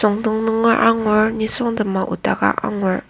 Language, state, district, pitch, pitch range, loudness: Ao, Nagaland, Kohima, 220 Hz, 210-225 Hz, -18 LUFS